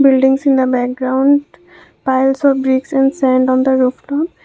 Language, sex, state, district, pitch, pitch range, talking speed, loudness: English, female, Assam, Kamrup Metropolitan, 265 Hz, 260-275 Hz, 175 wpm, -14 LUFS